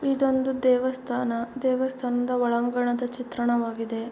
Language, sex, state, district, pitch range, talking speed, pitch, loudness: Kannada, female, Karnataka, Mysore, 240-260 Hz, 75 wpm, 245 Hz, -26 LUFS